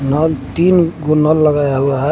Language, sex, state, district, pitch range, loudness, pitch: Hindi, male, Jharkhand, Garhwa, 140-160 Hz, -14 LUFS, 150 Hz